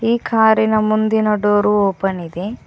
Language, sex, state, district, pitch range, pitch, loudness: Kannada, female, Karnataka, Koppal, 200-220 Hz, 215 Hz, -16 LUFS